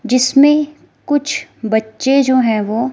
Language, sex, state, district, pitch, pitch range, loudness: Hindi, female, Himachal Pradesh, Shimla, 255 Hz, 225-280 Hz, -14 LUFS